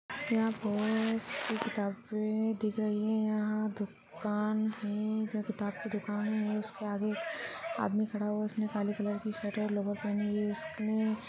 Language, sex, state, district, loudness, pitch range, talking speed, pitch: Hindi, female, Rajasthan, Churu, -34 LUFS, 210-220 Hz, 170 wpm, 215 Hz